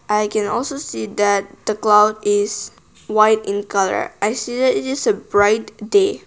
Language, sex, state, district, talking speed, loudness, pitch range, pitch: English, female, Nagaland, Kohima, 170 wpm, -18 LUFS, 205-230 Hz, 210 Hz